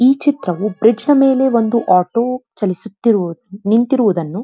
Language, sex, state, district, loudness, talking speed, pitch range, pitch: Kannada, female, Karnataka, Dharwad, -15 LUFS, 135 wpm, 200-255 Hz, 225 Hz